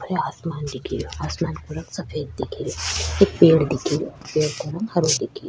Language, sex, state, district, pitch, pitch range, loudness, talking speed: Rajasthani, female, Rajasthan, Churu, 155 Hz, 140-175 Hz, -22 LUFS, 175 wpm